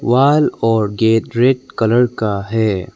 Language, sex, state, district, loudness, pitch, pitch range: Hindi, male, Arunachal Pradesh, Lower Dibang Valley, -15 LUFS, 115 Hz, 110-125 Hz